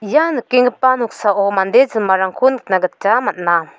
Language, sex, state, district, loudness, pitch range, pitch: Garo, female, Meghalaya, South Garo Hills, -15 LUFS, 190-255 Hz, 215 Hz